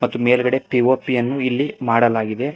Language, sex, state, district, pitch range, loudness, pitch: Kannada, male, Karnataka, Koppal, 120-130 Hz, -18 LUFS, 125 Hz